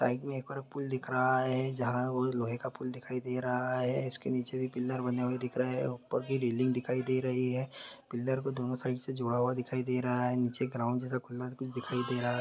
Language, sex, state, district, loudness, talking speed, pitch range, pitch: Maithili, male, Bihar, Madhepura, -34 LUFS, 260 wpm, 125-130 Hz, 125 Hz